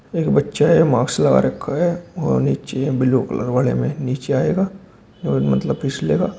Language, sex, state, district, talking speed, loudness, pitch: Hindi, male, Uttar Pradesh, Shamli, 180 wpm, -19 LUFS, 130 Hz